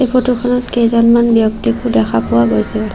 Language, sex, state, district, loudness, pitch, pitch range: Assamese, female, Assam, Sonitpur, -13 LUFS, 230 Hz, 185-245 Hz